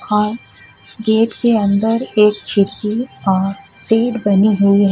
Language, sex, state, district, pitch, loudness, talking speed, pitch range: Hindi, female, Jharkhand, Ranchi, 210 Hz, -15 LUFS, 135 wpm, 200-225 Hz